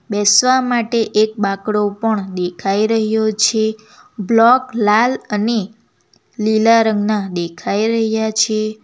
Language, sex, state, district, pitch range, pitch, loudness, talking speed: Gujarati, female, Gujarat, Valsad, 210-225 Hz, 220 Hz, -16 LUFS, 110 wpm